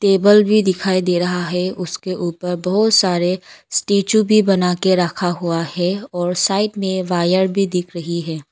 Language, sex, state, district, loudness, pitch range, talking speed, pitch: Hindi, female, Arunachal Pradesh, Longding, -17 LUFS, 175-195 Hz, 175 wpm, 180 Hz